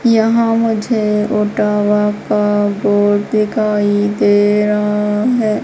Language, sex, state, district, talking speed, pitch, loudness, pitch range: Hindi, female, Madhya Pradesh, Umaria, 95 wpm, 210 Hz, -14 LUFS, 205-220 Hz